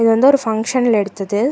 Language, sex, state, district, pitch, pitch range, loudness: Tamil, female, Karnataka, Bangalore, 225 Hz, 210-255 Hz, -16 LUFS